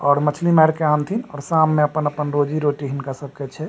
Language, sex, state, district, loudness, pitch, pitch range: Maithili, male, Bihar, Supaul, -19 LUFS, 150 Hz, 145-155 Hz